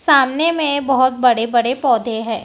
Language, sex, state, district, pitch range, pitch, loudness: Hindi, female, Maharashtra, Gondia, 235-285 Hz, 255 Hz, -16 LUFS